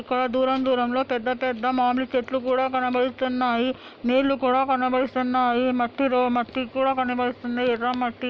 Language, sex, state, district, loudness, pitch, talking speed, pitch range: Telugu, female, Andhra Pradesh, Anantapur, -23 LUFS, 255 Hz, 130 wpm, 245-260 Hz